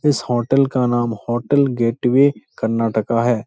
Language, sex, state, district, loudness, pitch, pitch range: Hindi, male, Bihar, Supaul, -18 LUFS, 120 Hz, 115-135 Hz